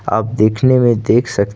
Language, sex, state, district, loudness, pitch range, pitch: Hindi, male, Jharkhand, Ranchi, -14 LUFS, 110-120 Hz, 110 Hz